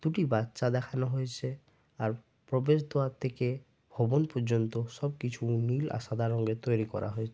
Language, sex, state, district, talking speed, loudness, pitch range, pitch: Bengali, male, West Bengal, Jalpaiguri, 145 wpm, -32 LUFS, 115-135 Hz, 125 Hz